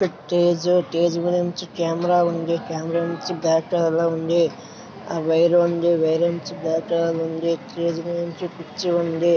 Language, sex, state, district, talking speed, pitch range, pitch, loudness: Telugu, male, Andhra Pradesh, Srikakulam, 160 wpm, 165-175 Hz, 170 Hz, -22 LUFS